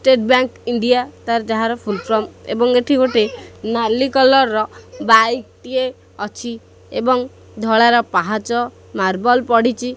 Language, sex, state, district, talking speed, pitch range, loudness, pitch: Odia, male, Odisha, Khordha, 130 wpm, 225-250 Hz, -17 LUFS, 235 Hz